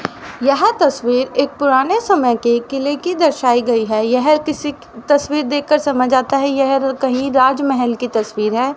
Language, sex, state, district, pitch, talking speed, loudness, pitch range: Hindi, female, Haryana, Rohtak, 270 Hz, 170 wpm, -16 LUFS, 245-290 Hz